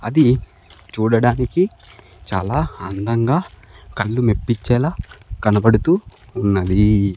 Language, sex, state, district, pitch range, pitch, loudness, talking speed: Telugu, male, Andhra Pradesh, Sri Satya Sai, 100-120 Hz, 105 Hz, -18 LUFS, 65 wpm